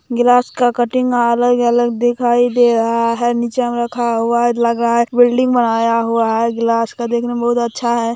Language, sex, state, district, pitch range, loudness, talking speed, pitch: Hindi, female, Bihar, Gopalganj, 230-240 Hz, -15 LUFS, 200 wpm, 235 Hz